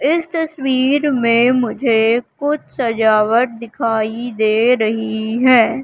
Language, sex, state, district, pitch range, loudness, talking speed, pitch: Hindi, female, Madhya Pradesh, Katni, 225-260 Hz, -16 LUFS, 105 wpm, 235 Hz